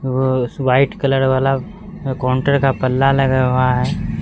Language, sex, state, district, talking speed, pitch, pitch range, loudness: Hindi, male, Bihar, Katihar, 155 wpm, 130 Hz, 130-135 Hz, -16 LUFS